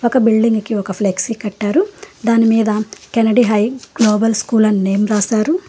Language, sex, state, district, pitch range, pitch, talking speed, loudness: Telugu, female, Telangana, Hyderabad, 210-230 Hz, 220 Hz, 150 wpm, -15 LUFS